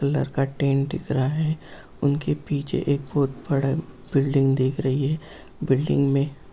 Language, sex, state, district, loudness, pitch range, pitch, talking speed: Hindi, male, Bihar, Gaya, -24 LUFS, 135-145 Hz, 140 Hz, 155 wpm